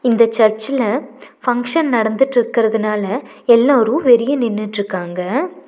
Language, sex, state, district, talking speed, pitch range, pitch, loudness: Tamil, female, Tamil Nadu, Nilgiris, 75 wpm, 215-255 Hz, 235 Hz, -16 LUFS